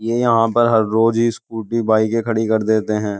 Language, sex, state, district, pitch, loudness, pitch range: Hindi, male, Uttar Pradesh, Jyotiba Phule Nagar, 115 Hz, -17 LUFS, 110-115 Hz